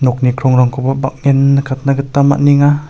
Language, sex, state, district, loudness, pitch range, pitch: Garo, male, Meghalaya, South Garo Hills, -12 LUFS, 130-140 Hz, 135 Hz